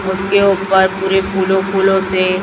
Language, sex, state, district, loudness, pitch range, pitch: Hindi, female, Chhattisgarh, Raipur, -14 LUFS, 190-195 Hz, 190 Hz